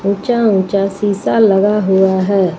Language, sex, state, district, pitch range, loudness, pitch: Hindi, female, Uttar Pradesh, Lucknow, 190-205 Hz, -13 LUFS, 195 Hz